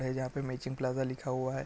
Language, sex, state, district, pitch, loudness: Hindi, male, Chhattisgarh, Korba, 130 Hz, -35 LUFS